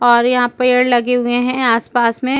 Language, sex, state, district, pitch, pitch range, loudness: Hindi, female, Chhattisgarh, Rajnandgaon, 245 Hz, 240-250 Hz, -14 LUFS